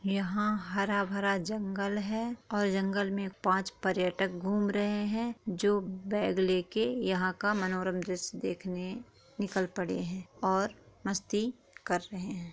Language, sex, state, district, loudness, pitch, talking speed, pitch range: Hindi, female, Jharkhand, Jamtara, -32 LUFS, 200 Hz, 130 wpm, 185-210 Hz